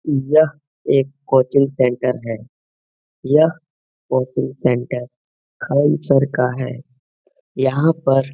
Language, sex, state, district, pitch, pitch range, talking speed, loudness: Hindi, male, Bihar, Jamui, 135 Hz, 125-145 Hz, 110 wpm, -18 LUFS